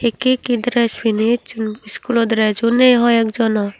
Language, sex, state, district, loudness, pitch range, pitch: Chakma, female, Tripura, Unakoti, -16 LUFS, 220-240 Hz, 230 Hz